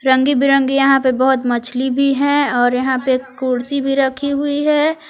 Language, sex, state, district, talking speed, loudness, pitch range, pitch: Hindi, female, Jharkhand, Palamu, 190 wpm, -16 LUFS, 260-280 Hz, 270 Hz